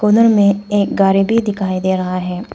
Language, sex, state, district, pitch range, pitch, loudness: Hindi, female, Arunachal Pradesh, Papum Pare, 190-210 Hz, 200 Hz, -15 LUFS